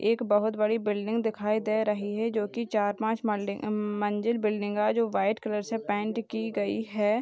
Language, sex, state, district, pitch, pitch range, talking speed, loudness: Hindi, male, Bihar, Purnia, 215 Hz, 205-225 Hz, 200 wpm, -29 LUFS